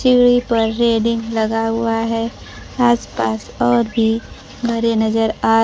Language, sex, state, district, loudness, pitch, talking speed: Hindi, female, Bihar, Kaimur, -17 LUFS, 225 Hz, 125 wpm